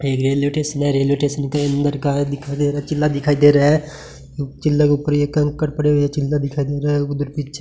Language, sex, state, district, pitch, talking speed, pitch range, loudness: Hindi, male, Rajasthan, Bikaner, 145 Hz, 270 wpm, 140-150 Hz, -18 LUFS